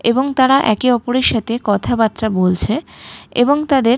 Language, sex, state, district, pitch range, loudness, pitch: Bengali, female, West Bengal, Malda, 220-260 Hz, -15 LUFS, 240 Hz